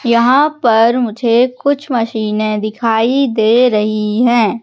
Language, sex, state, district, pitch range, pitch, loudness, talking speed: Hindi, female, Madhya Pradesh, Katni, 220-250 Hz, 235 Hz, -13 LUFS, 115 wpm